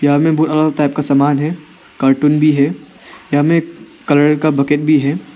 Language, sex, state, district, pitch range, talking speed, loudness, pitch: Hindi, male, Arunachal Pradesh, Papum Pare, 145-155 Hz, 210 wpm, -14 LUFS, 150 Hz